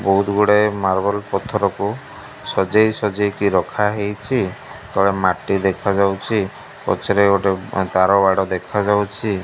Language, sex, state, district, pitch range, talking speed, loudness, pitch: Odia, male, Odisha, Malkangiri, 95-105 Hz, 115 wpm, -18 LUFS, 100 Hz